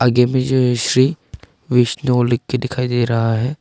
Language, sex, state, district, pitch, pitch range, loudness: Hindi, male, Arunachal Pradesh, Longding, 125 Hz, 120-130 Hz, -17 LUFS